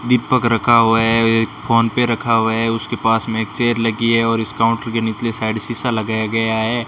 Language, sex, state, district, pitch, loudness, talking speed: Hindi, male, Rajasthan, Bikaner, 115 Hz, -17 LUFS, 225 wpm